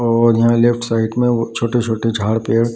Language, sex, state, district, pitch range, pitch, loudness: Hindi, male, Bihar, Darbhanga, 115-120 Hz, 115 Hz, -16 LUFS